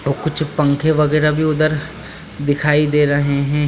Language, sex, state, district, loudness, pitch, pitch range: Hindi, male, Bihar, Jamui, -16 LUFS, 150 Hz, 145-155 Hz